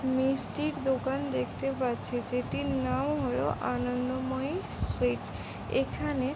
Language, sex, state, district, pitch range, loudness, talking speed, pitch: Bengali, female, West Bengal, Jalpaiguri, 240-270 Hz, -31 LUFS, 105 wpm, 260 Hz